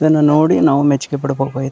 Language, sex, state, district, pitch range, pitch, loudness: Kannada, male, Karnataka, Dharwad, 135-150 Hz, 145 Hz, -14 LUFS